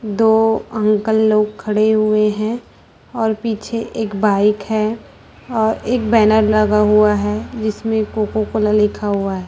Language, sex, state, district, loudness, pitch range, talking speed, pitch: Hindi, female, Chhattisgarh, Raipur, -16 LUFS, 210-220 Hz, 145 wpm, 215 Hz